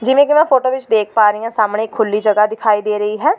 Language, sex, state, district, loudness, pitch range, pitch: Punjabi, female, Delhi, New Delhi, -14 LUFS, 210-255 Hz, 215 Hz